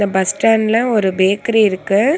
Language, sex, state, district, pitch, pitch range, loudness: Tamil, female, Tamil Nadu, Nilgiris, 210 Hz, 190-225 Hz, -15 LUFS